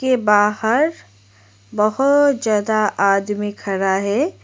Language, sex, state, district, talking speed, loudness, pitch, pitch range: Hindi, female, Arunachal Pradesh, Lower Dibang Valley, 80 wpm, -17 LUFS, 210 Hz, 195-250 Hz